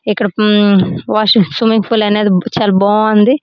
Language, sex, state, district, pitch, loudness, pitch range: Telugu, female, Andhra Pradesh, Srikakulam, 210 Hz, -11 LUFS, 200-220 Hz